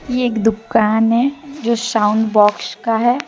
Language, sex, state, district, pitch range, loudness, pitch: Hindi, female, Jharkhand, Deoghar, 220-245 Hz, -16 LUFS, 230 Hz